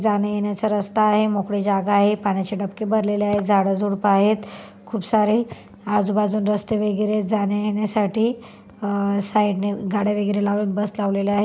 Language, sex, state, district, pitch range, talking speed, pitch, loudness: Marathi, female, Maharashtra, Chandrapur, 200-210 Hz, 150 wpm, 205 Hz, -21 LUFS